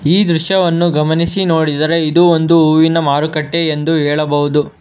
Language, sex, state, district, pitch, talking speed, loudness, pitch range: Kannada, male, Karnataka, Bangalore, 160 Hz, 125 wpm, -13 LUFS, 155-170 Hz